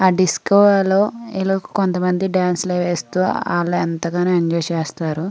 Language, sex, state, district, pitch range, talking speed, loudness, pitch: Telugu, female, Andhra Pradesh, Srikakulam, 175-190 Hz, 145 wpm, -18 LUFS, 180 Hz